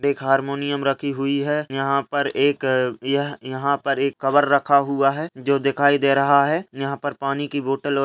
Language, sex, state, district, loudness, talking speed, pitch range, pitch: Hindi, male, Rajasthan, Churu, -21 LUFS, 200 wpm, 135-140 Hz, 140 Hz